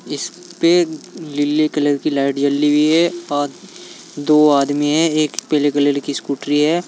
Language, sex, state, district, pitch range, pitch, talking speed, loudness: Hindi, male, Uttar Pradesh, Saharanpur, 145-155 Hz, 145 Hz, 155 wpm, -17 LUFS